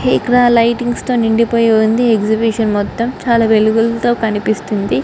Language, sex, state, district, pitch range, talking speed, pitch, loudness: Telugu, female, Andhra Pradesh, Guntur, 220-240 Hz, 105 wpm, 225 Hz, -13 LUFS